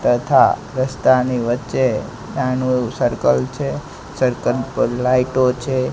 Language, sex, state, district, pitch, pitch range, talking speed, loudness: Gujarati, male, Gujarat, Gandhinagar, 125 Hz, 120-130 Hz, 110 wpm, -18 LUFS